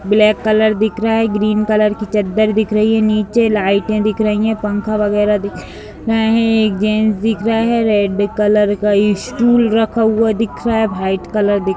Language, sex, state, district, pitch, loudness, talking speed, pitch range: Hindi, female, Bihar, Madhepura, 215 Hz, -15 LUFS, 200 wpm, 210-220 Hz